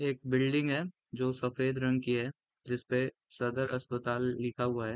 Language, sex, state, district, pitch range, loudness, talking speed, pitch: Hindi, male, Uttar Pradesh, Gorakhpur, 120-130 Hz, -33 LUFS, 170 wpm, 125 Hz